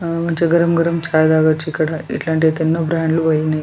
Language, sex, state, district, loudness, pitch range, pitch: Telugu, female, Telangana, Nalgonda, -16 LUFS, 155-165 Hz, 160 Hz